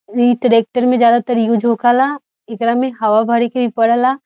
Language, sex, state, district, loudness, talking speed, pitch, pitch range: Bhojpuri, female, Bihar, Saran, -14 LUFS, 195 wpm, 240 Hz, 230-250 Hz